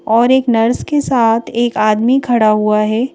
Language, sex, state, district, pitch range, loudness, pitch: Hindi, female, Madhya Pradesh, Bhopal, 215-250 Hz, -13 LUFS, 230 Hz